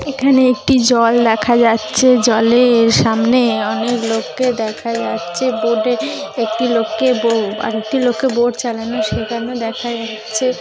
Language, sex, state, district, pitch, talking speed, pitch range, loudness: Bengali, female, West Bengal, Malda, 235 Hz, 130 wpm, 225-250 Hz, -15 LUFS